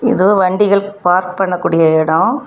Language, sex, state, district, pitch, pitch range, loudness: Tamil, female, Tamil Nadu, Kanyakumari, 190 Hz, 180-205 Hz, -13 LUFS